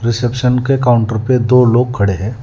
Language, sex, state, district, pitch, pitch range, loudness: Hindi, male, Telangana, Hyderabad, 120 Hz, 115-125 Hz, -13 LUFS